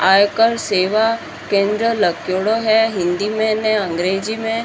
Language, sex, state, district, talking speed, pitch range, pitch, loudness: Marwari, female, Rajasthan, Churu, 130 wpm, 195-225 Hz, 215 Hz, -17 LUFS